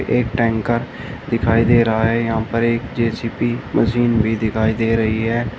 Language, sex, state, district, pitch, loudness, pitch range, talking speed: Hindi, male, Uttar Pradesh, Shamli, 115 Hz, -18 LUFS, 115-120 Hz, 170 wpm